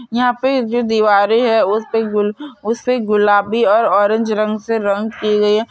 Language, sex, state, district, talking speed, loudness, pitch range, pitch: Hindi, female, Chhattisgarh, Bilaspur, 180 wpm, -15 LUFS, 210-235 Hz, 220 Hz